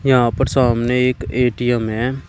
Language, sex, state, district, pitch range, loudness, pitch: Hindi, male, Uttar Pradesh, Shamli, 120-130 Hz, -17 LUFS, 125 Hz